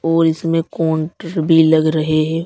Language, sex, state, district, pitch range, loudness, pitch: Hindi, male, Uttar Pradesh, Saharanpur, 160-165 Hz, -16 LUFS, 160 Hz